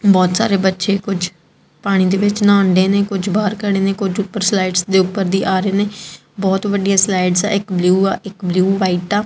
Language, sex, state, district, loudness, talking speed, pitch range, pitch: Punjabi, female, Punjab, Kapurthala, -16 LUFS, 215 wpm, 185-200 Hz, 195 Hz